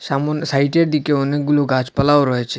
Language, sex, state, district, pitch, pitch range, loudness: Bengali, male, Assam, Hailakandi, 145 Hz, 140-150 Hz, -17 LUFS